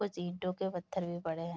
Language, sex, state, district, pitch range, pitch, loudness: Hindi, female, Bihar, Bhagalpur, 170-190 Hz, 175 Hz, -38 LUFS